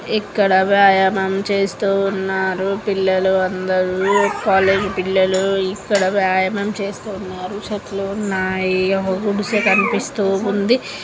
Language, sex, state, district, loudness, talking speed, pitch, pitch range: Telugu, female, Andhra Pradesh, Srikakulam, -18 LUFS, 90 wpm, 195 Hz, 190-200 Hz